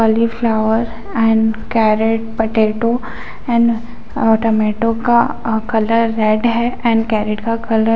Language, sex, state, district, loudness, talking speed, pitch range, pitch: Hindi, female, Chhattisgarh, Bilaspur, -16 LUFS, 130 wpm, 220-230 Hz, 225 Hz